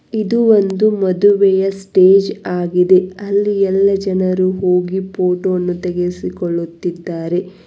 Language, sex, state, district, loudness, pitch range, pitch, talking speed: Kannada, female, Karnataka, Bangalore, -15 LUFS, 180-195 Hz, 185 Hz, 95 wpm